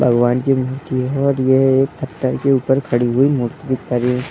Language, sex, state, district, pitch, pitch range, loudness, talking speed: Hindi, male, Uttar Pradesh, Etah, 130 Hz, 125-135 Hz, -17 LUFS, 250 wpm